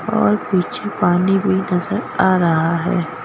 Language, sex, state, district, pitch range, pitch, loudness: Hindi, female, Madhya Pradesh, Bhopal, 175-195 Hz, 185 Hz, -17 LUFS